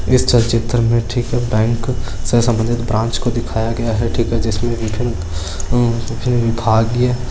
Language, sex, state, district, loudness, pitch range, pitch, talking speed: Hindi, male, Rajasthan, Churu, -17 LUFS, 110-120 Hz, 115 Hz, 105 wpm